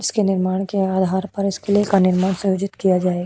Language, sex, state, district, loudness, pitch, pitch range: Hindi, female, Goa, North and South Goa, -19 LUFS, 190 Hz, 185-200 Hz